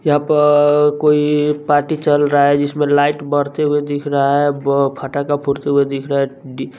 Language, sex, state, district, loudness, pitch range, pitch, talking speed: Hindi, male, Bihar, West Champaran, -15 LUFS, 140-150 Hz, 145 Hz, 210 wpm